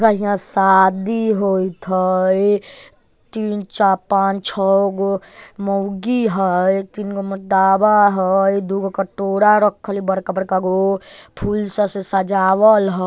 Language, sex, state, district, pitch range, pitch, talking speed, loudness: Bajjika, male, Bihar, Vaishali, 190-205 Hz, 195 Hz, 100 wpm, -17 LUFS